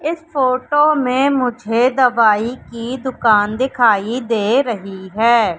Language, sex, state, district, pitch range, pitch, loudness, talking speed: Hindi, female, Madhya Pradesh, Katni, 225-260 Hz, 245 Hz, -16 LUFS, 120 wpm